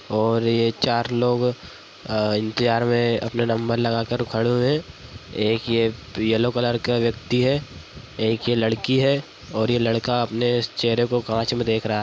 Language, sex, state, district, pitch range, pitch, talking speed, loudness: Hindi, female, Bihar, Madhepura, 110-120 Hz, 115 Hz, 180 wpm, -22 LUFS